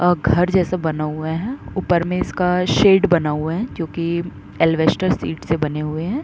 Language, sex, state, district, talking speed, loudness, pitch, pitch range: Hindi, female, Uttar Pradesh, Muzaffarnagar, 200 wpm, -19 LUFS, 170 Hz, 160-180 Hz